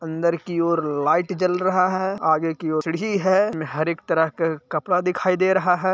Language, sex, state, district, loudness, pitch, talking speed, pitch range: Hindi, male, Bihar, Jahanabad, -21 LUFS, 170 Hz, 230 wpm, 160-185 Hz